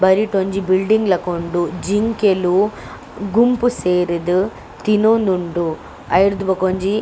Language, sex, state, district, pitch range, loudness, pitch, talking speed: Tulu, female, Karnataka, Dakshina Kannada, 180-210 Hz, -17 LUFS, 190 Hz, 100 wpm